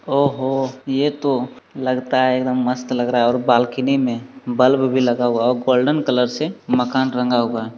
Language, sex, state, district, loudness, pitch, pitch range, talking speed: Hindi, male, Bihar, Jamui, -18 LUFS, 130 Hz, 125-130 Hz, 200 wpm